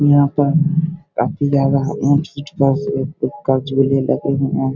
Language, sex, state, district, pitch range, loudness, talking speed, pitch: Hindi, male, Bihar, Begusarai, 135-145 Hz, -17 LUFS, 65 wpm, 140 Hz